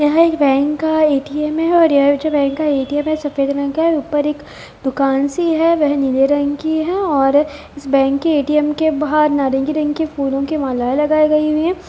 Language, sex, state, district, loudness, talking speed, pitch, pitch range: Hindi, female, Bihar, Gopalganj, -16 LUFS, 220 wpm, 295 Hz, 280-310 Hz